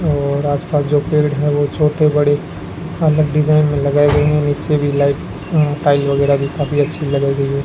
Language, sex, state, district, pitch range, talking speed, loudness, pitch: Hindi, male, Rajasthan, Bikaner, 140-150 Hz, 190 wpm, -15 LUFS, 145 Hz